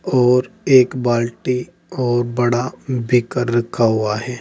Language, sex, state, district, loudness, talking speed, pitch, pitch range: Hindi, male, Uttar Pradesh, Saharanpur, -18 LUFS, 120 wpm, 125 Hz, 120-125 Hz